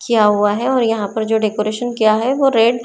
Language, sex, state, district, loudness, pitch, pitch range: Hindi, female, Maharashtra, Chandrapur, -16 LUFS, 220 Hz, 215-240 Hz